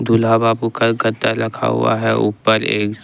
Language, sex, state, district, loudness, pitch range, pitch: Hindi, male, Jharkhand, Ranchi, -16 LUFS, 110-115 Hz, 115 Hz